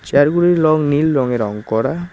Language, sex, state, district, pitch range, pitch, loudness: Bengali, male, West Bengal, Cooch Behar, 125-160 Hz, 145 Hz, -15 LUFS